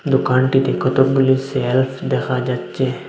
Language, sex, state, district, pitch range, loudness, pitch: Bengali, male, Assam, Hailakandi, 130-135 Hz, -17 LUFS, 130 Hz